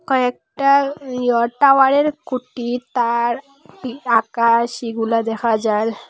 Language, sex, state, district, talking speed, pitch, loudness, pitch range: Bengali, female, Assam, Hailakandi, 90 wpm, 245 Hz, -18 LUFS, 230-270 Hz